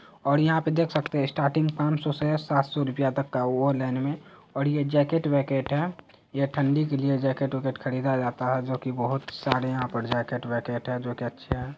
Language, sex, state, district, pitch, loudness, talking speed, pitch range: Hindi, male, Bihar, Araria, 135 Hz, -26 LUFS, 220 wpm, 130-145 Hz